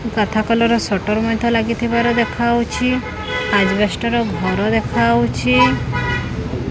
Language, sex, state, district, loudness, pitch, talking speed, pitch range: Odia, female, Odisha, Khordha, -17 LUFS, 215 Hz, 90 wpm, 185-235 Hz